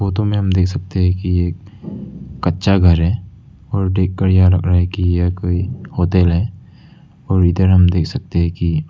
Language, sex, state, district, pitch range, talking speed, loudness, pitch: Hindi, male, Arunachal Pradesh, Lower Dibang Valley, 90-100 Hz, 195 wpm, -16 LUFS, 95 Hz